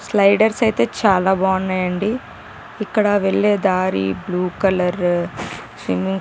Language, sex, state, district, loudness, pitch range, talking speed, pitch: Telugu, female, Telangana, Karimnagar, -18 LUFS, 180-205 Hz, 75 wpm, 190 Hz